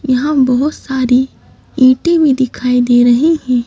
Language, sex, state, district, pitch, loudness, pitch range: Hindi, female, Madhya Pradesh, Bhopal, 255 Hz, -12 LUFS, 250-285 Hz